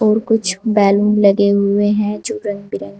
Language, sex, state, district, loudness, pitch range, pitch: Hindi, female, Uttar Pradesh, Saharanpur, -15 LUFS, 200-215 Hz, 205 Hz